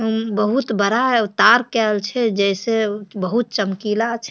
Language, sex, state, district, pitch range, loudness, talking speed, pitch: Maithili, female, Bihar, Supaul, 205-235 Hz, -18 LUFS, 155 wpm, 220 Hz